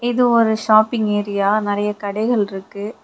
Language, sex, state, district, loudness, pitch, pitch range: Tamil, female, Tamil Nadu, Kanyakumari, -18 LUFS, 210 Hz, 205-225 Hz